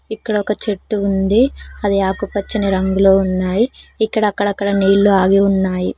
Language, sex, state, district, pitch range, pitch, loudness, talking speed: Telugu, female, Telangana, Mahabubabad, 195-210 Hz, 200 Hz, -16 LUFS, 130 wpm